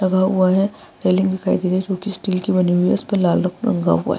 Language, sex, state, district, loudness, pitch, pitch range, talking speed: Hindi, female, Bihar, Vaishali, -18 LUFS, 185 Hz, 180-195 Hz, 300 wpm